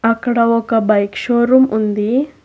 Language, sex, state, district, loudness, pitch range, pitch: Telugu, female, Telangana, Hyderabad, -15 LUFS, 215-245 Hz, 230 Hz